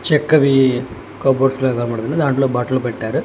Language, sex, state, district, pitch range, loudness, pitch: Telugu, male, Telangana, Hyderabad, 125-135 Hz, -17 LUFS, 130 Hz